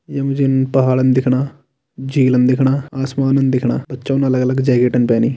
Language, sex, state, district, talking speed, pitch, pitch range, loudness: Kumaoni, male, Uttarakhand, Tehri Garhwal, 155 wpm, 130 Hz, 130-135 Hz, -16 LUFS